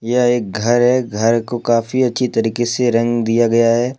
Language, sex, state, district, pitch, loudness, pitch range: Hindi, male, Jharkhand, Deoghar, 120 Hz, -16 LUFS, 115-125 Hz